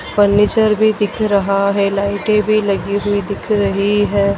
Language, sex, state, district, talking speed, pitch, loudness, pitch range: Hindi, female, Madhya Pradesh, Dhar, 165 wpm, 205 Hz, -15 LUFS, 200-210 Hz